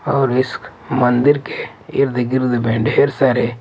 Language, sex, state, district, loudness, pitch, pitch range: Hindi, male, Delhi, New Delhi, -17 LUFS, 130 Hz, 120-135 Hz